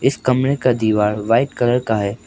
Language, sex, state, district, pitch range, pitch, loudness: Hindi, male, Arunachal Pradesh, Papum Pare, 110-125 Hz, 120 Hz, -17 LUFS